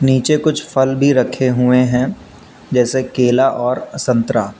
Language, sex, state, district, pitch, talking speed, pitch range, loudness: Hindi, male, Uttar Pradesh, Lucknow, 130 Hz, 130 wpm, 125-135 Hz, -15 LUFS